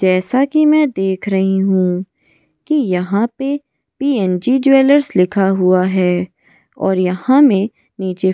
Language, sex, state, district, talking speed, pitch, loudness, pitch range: Hindi, female, Goa, North and South Goa, 135 wpm, 195 Hz, -15 LUFS, 185-270 Hz